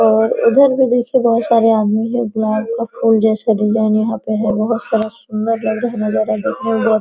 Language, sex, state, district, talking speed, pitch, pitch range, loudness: Hindi, female, Bihar, Araria, 230 wpm, 220 Hz, 215-230 Hz, -15 LUFS